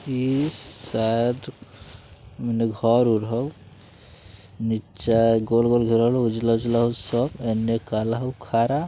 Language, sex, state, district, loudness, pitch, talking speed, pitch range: Bajjika, male, Bihar, Vaishali, -23 LUFS, 115 Hz, 110 wpm, 110-120 Hz